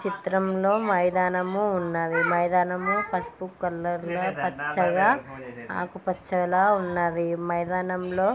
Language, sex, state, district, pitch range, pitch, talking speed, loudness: Telugu, female, Andhra Pradesh, Srikakulam, 175-190 Hz, 180 Hz, 85 wpm, -25 LUFS